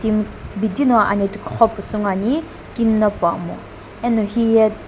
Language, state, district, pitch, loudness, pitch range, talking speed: Sumi, Nagaland, Dimapur, 220 Hz, -19 LUFS, 205-230 Hz, 145 wpm